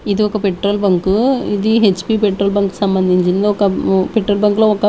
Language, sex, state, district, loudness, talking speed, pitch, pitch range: Telugu, female, Andhra Pradesh, Manyam, -15 LUFS, 195 wpm, 205 Hz, 195-210 Hz